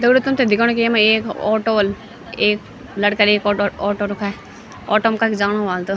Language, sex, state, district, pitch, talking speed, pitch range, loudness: Garhwali, female, Uttarakhand, Tehri Garhwal, 210 Hz, 210 wpm, 205-225 Hz, -17 LUFS